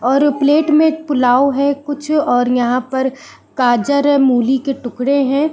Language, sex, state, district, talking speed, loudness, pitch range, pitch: Hindi, female, Uttarakhand, Uttarkashi, 160 wpm, -15 LUFS, 250-290 Hz, 275 Hz